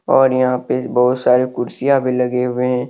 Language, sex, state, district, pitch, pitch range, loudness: Hindi, male, Jharkhand, Deoghar, 125 Hz, 125-130 Hz, -16 LUFS